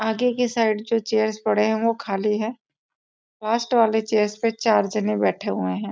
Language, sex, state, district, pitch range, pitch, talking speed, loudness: Hindi, female, Bihar, East Champaran, 210-230 Hz, 220 Hz, 195 wpm, -22 LUFS